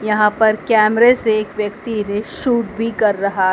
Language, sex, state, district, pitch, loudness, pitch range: Hindi, female, Madhya Pradesh, Dhar, 215 Hz, -16 LUFS, 210-230 Hz